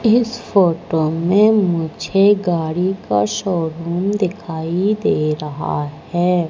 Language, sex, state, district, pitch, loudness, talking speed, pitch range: Hindi, female, Madhya Pradesh, Katni, 175 Hz, -18 LUFS, 100 wpm, 160-200 Hz